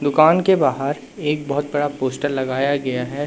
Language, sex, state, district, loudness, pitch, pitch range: Hindi, male, Madhya Pradesh, Katni, -20 LUFS, 145 Hz, 135-150 Hz